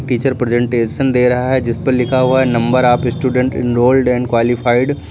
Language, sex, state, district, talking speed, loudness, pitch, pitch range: Hindi, male, Uttar Pradesh, Lucknow, 200 wpm, -14 LUFS, 125 Hz, 120-130 Hz